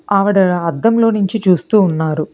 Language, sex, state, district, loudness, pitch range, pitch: Telugu, female, Telangana, Hyderabad, -14 LUFS, 170-215 Hz, 195 Hz